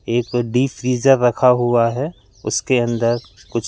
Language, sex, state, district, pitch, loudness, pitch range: Hindi, male, Madhya Pradesh, Katni, 120 Hz, -18 LUFS, 115-125 Hz